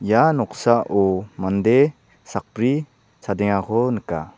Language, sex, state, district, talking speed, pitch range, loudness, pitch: Garo, male, Meghalaya, South Garo Hills, 80 wpm, 100-125 Hz, -20 LUFS, 110 Hz